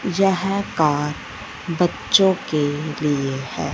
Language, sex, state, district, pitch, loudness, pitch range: Hindi, female, Punjab, Fazilka, 150 Hz, -20 LUFS, 145-190 Hz